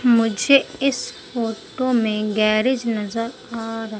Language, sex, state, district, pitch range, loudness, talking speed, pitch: Hindi, female, Madhya Pradesh, Umaria, 220-255 Hz, -21 LUFS, 120 wpm, 230 Hz